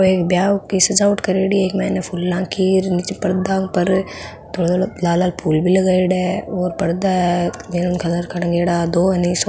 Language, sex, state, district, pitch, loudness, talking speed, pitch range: Marwari, female, Rajasthan, Nagaur, 185 Hz, -18 LUFS, 195 wpm, 175-190 Hz